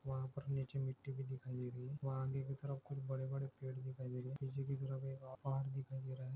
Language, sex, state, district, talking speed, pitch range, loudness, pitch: Hindi, male, Maharashtra, Chandrapur, 280 wpm, 130-135 Hz, -45 LUFS, 135 Hz